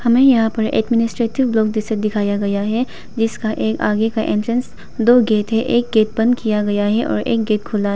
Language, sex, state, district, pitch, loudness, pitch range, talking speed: Hindi, female, Arunachal Pradesh, Papum Pare, 220 Hz, -17 LUFS, 210-235 Hz, 205 wpm